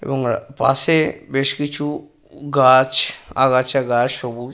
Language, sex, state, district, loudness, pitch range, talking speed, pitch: Bengali, male, West Bengal, Purulia, -17 LUFS, 125-145 Hz, 105 wpm, 130 Hz